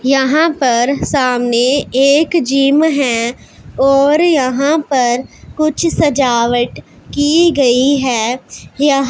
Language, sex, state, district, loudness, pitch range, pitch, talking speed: Hindi, female, Punjab, Pathankot, -13 LUFS, 250-295 Hz, 275 Hz, 100 wpm